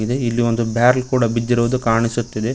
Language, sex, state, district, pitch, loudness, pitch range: Kannada, male, Karnataka, Koppal, 120 Hz, -18 LUFS, 115-125 Hz